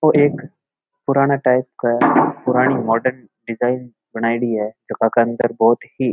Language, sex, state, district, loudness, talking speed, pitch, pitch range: Marwari, male, Rajasthan, Nagaur, -18 LUFS, 165 wpm, 125 Hz, 115-135 Hz